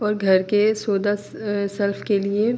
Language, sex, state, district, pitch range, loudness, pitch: Urdu, female, Andhra Pradesh, Anantapur, 200-210 Hz, -21 LUFS, 205 Hz